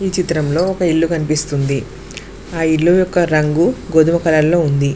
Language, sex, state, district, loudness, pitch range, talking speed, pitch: Telugu, female, Telangana, Mahabubabad, -15 LUFS, 155-175 Hz, 155 wpm, 160 Hz